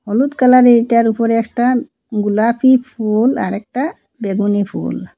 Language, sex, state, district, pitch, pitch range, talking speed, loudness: Bengali, female, Assam, Hailakandi, 235 Hz, 215-255 Hz, 115 wpm, -15 LUFS